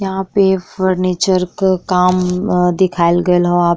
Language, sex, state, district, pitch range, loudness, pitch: Bhojpuri, female, Uttar Pradesh, Ghazipur, 180-190 Hz, -14 LUFS, 180 Hz